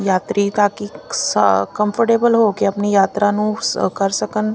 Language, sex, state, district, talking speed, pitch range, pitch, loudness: Punjabi, female, Punjab, Fazilka, 130 wpm, 195-215 Hz, 205 Hz, -17 LUFS